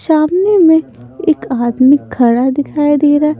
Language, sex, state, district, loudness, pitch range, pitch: Hindi, female, Punjab, Pathankot, -12 LUFS, 260-320 Hz, 295 Hz